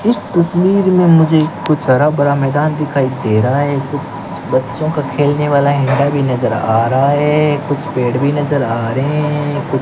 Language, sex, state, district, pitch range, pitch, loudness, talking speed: Hindi, male, Rajasthan, Bikaner, 135-150 Hz, 145 Hz, -14 LUFS, 175 wpm